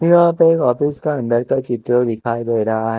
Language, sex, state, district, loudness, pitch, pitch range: Hindi, male, Punjab, Kapurthala, -17 LUFS, 125 Hz, 115-150 Hz